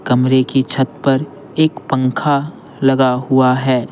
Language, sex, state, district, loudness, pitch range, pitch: Hindi, male, Bihar, Patna, -15 LUFS, 130-140 Hz, 135 Hz